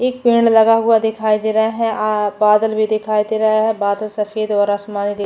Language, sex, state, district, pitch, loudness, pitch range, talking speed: Hindi, female, Chhattisgarh, Bastar, 215 Hz, -16 LUFS, 210-220 Hz, 215 wpm